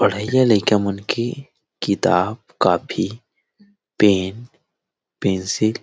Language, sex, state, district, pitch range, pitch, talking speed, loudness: Chhattisgarhi, male, Chhattisgarh, Rajnandgaon, 100-120 Hz, 110 Hz, 90 wpm, -19 LUFS